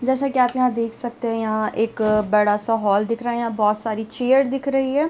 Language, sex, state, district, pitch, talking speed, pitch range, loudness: Hindi, female, Bihar, Bhagalpur, 230 Hz, 260 wpm, 215-255 Hz, -21 LUFS